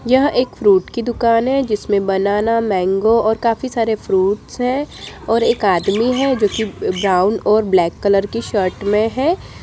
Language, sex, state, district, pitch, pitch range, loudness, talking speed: Hindi, female, Bihar, Jamui, 220 Hz, 200-240 Hz, -16 LUFS, 175 wpm